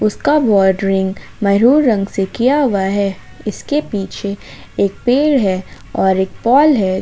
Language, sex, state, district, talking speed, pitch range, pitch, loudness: Hindi, female, Jharkhand, Ranchi, 145 wpm, 190-255 Hz, 200 Hz, -15 LUFS